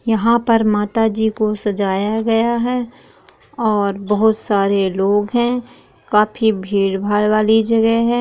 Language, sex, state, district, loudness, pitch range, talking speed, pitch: Hindi, female, Bihar, East Champaran, -17 LUFS, 205-230 Hz, 155 wpm, 220 Hz